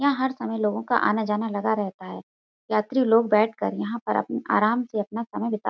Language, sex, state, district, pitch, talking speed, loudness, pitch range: Hindi, female, Uttar Pradesh, Budaun, 220 Hz, 230 wpm, -24 LUFS, 210-235 Hz